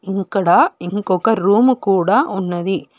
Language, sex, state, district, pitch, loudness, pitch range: Telugu, female, Telangana, Hyderabad, 195 Hz, -16 LUFS, 185-205 Hz